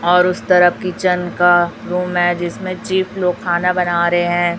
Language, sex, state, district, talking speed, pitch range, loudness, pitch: Hindi, male, Chhattisgarh, Raipur, 185 wpm, 175-180 Hz, -16 LUFS, 180 Hz